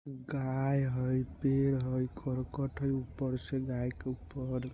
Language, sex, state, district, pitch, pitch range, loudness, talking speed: Maithili, male, Bihar, Muzaffarpur, 130 Hz, 130-135 Hz, -34 LUFS, 150 wpm